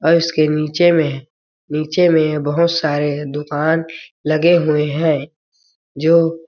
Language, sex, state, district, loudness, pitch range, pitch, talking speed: Hindi, male, Chhattisgarh, Balrampur, -16 LUFS, 150-165 Hz, 155 Hz, 130 wpm